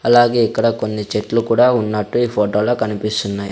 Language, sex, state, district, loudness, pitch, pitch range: Telugu, male, Andhra Pradesh, Sri Satya Sai, -17 LUFS, 110 Hz, 105-120 Hz